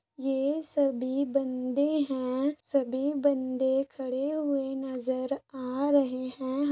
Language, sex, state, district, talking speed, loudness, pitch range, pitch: Hindi, female, Bihar, East Champaran, 105 wpm, -29 LUFS, 260-285 Hz, 270 Hz